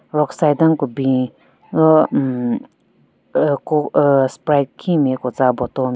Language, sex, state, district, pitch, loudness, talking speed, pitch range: Rengma, female, Nagaland, Kohima, 140 Hz, -17 LUFS, 160 wpm, 130-150 Hz